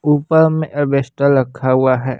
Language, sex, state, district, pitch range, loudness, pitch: Hindi, male, Bihar, West Champaran, 130-150 Hz, -15 LUFS, 140 Hz